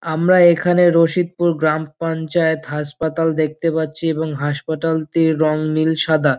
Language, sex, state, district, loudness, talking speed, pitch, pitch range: Bengali, male, West Bengal, Dakshin Dinajpur, -17 LUFS, 120 wpm, 160 Hz, 155-165 Hz